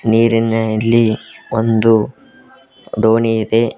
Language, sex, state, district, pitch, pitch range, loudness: Kannada, male, Karnataka, Koppal, 115 Hz, 110-115 Hz, -15 LUFS